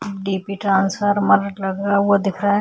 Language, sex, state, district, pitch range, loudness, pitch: Hindi, female, Chhattisgarh, Kabirdham, 195-205 Hz, -19 LUFS, 200 Hz